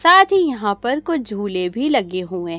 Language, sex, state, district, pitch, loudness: Hindi, male, Chhattisgarh, Raipur, 240 Hz, -18 LUFS